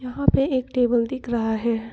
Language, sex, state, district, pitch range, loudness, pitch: Hindi, female, Arunachal Pradesh, Papum Pare, 230-255 Hz, -22 LUFS, 245 Hz